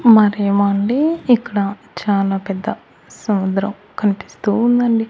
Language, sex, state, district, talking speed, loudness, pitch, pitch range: Telugu, male, Andhra Pradesh, Annamaya, 95 wpm, -17 LUFS, 205 Hz, 200-230 Hz